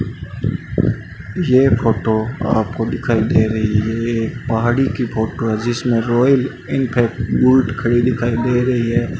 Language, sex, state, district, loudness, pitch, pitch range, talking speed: Hindi, male, Rajasthan, Bikaner, -17 LUFS, 120 Hz, 115-125 Hz, 135 wpm